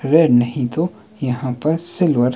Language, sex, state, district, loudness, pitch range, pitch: Hindi, male, Himachal Pradesh, Shimla, -18 LUFS, 125-165 Hz, 130 Hz